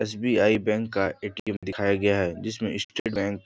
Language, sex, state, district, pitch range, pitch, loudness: Hindi, male, Bihar, Jahanabad, 100-110 Hz, 105 Hz, -26 LUFS